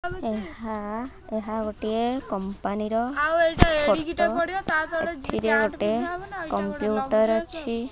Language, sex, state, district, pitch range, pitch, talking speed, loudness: Odia, female, Odisha, Khordha, 215-325 Hz, 235 Hz, 70 wpm, -25 LUFS